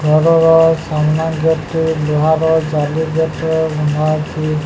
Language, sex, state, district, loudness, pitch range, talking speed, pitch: Odia, male, Odisha, Sambalpur, -14 LUFS, 155-160 Hz, 130 wpm, 160 Hz